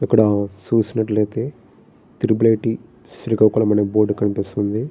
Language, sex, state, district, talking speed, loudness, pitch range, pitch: Telugu, male, Andhra Pradesh, Srikakulam, 100 wpm, -19 LUFS, 105-115 Hz, 110 Hz